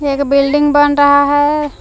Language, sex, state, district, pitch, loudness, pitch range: Hindi, female, Jharkhand, Palamu, 290 Hz, -11 LUFS, 280-290 Hz